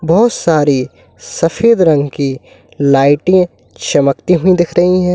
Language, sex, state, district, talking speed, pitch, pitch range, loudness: Hindi, male, Uttar Pradesh, Lalitpur, 130 wpm, 165 Hz, 140-180 Hz, -12 LUFS